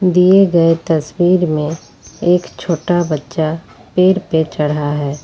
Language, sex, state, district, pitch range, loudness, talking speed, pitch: Hindi, female, Jharkhand, Ranchi, 150-180 Hz, -15 LUFS, 125 wpm, 165 Hz